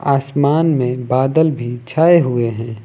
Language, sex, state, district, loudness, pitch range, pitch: Hindi, male, Uttar Pradesh, Lucknow, -15 LUFS, 120-155 Hz, 130 Hz